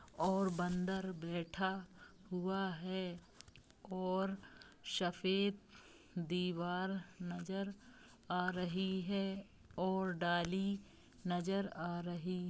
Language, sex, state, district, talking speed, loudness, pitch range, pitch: Hindi, female, Jharkhand, Jamtara, 80 wpm, -40 LUFS, 180-195 Hz, 185 Hz